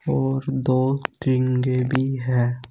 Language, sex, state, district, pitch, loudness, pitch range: Hindi, male, Uttar Pradesh, Saharanpur, 130 Hz, -22 LUFS, 125-135 Hz